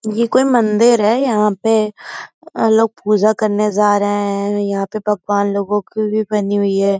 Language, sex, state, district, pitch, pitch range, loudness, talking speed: Hindi, female, Uttar Pradesh, Gorakhpur, 210 Hz, 205-220 Hz, -15 LUFS, 180 wpm